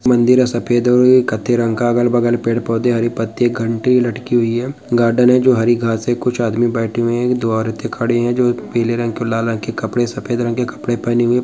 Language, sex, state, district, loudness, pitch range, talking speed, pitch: Hindi, male, Bihar, Jamui, -16 LUFS, 115-120 Hz, 240 wpm, 120 Hz